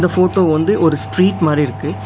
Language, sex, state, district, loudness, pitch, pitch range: Tamil, male, Tamil Nadu, Nilgiris, -14 LUFS, 160 Hz, 150-180 Hz